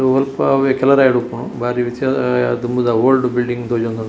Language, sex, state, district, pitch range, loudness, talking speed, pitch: Tulu, male, Karnataka, Dakshina Kannada, 120-130 Hz, -16 LUFS, 115 wpm, 125 Hz